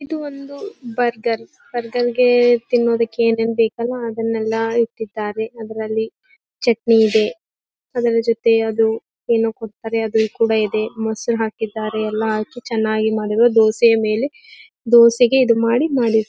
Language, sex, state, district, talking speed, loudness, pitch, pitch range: Kannada, female, Karnataka, Gulbarga, 120 wpm, -18 LUFS, 230 Hz, 220-240 Hz